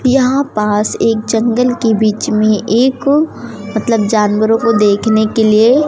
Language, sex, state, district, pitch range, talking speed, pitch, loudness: Hindi, female, Madhya Pradesh, Umaria, 215-245 Hz, 155 wpm, 225 Hz, -12 LUFS